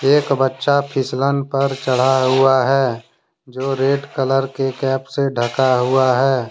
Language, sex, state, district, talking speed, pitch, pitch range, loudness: Hindi, male, Jharkhand, Deoghar, 150 wpm, 135 Hz, 130-135 Hz, -17 LUFS